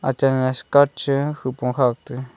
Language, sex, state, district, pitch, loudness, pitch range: Wancho, male, Arunachal Pradesh, Longding, 130 Hz, -20 LUFS, 125-140 Hz